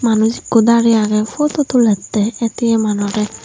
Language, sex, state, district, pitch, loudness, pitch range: Chakma, female, Tripura, Unakoti, 225 Hz, -15 LUFS, 215-235 Hz